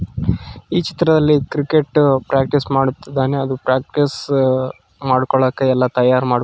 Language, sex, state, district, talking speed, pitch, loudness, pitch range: Kannada, male, Karnataka, Raichur, 110 wpm, 135 Hz, -17 LUFS, 130-145 Hz